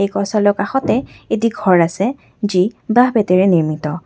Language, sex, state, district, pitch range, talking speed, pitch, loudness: Assamese, female, Assam, Kamrup Metropolitan, 180-225 Hz, 105 wpm, 200 Hz, -16 LUFS